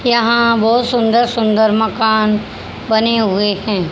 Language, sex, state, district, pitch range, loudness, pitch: Hindi, female, Haryana, Jhajjar, 215-235 Hz, -14 LUFS, 220 Hz